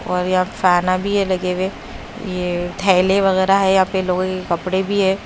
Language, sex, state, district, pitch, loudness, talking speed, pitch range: Hindi, female, Punjab, Kapurthala, 185 Hz, -18 LUFS, 205 wpm, 180-195 Hz